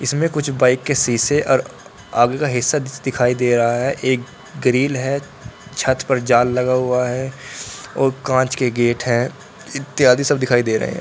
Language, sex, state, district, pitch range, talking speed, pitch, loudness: Hindi, male, Bihar, Purnia, 125-135 Hz, 180 wpm, 130 Hz, -18 LUFS